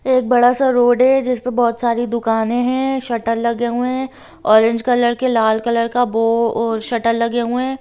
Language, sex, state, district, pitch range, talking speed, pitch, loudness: Hindi, female, Bihar, Sitamarhi, 230-250 Hz, 205 wpm, 240 Hz, -16 LUFS